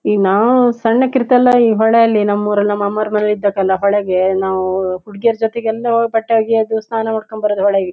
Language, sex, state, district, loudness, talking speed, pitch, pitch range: Kannada, female, Karnataka, Shimoga, -14 LUFS, 150 wpm, 215 Hz, 200-230 Hz